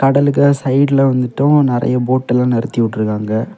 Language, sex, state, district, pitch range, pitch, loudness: Tamil, male, Tamil Nadu, Kanyakumari, 120-140 Hz, 130 Hz, -14 LUFS